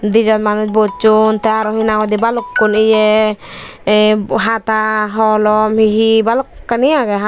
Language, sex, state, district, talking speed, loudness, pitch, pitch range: Chakma, female, Tripura, Dhalai, 125 wpm, -13 LUFS, 215 Hz, 215-225 Hz